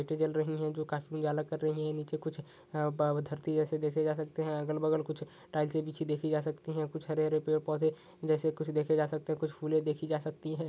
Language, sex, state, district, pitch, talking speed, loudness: Hindi, male, Chhattisgarh, Sukma, 155 Hz, 255 wpm, -34 LUFS